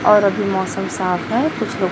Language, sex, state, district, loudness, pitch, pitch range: Hindi, female, Chhattisgarh, Raipur, -19 LUFS, 200 Hz, 185-220 Hz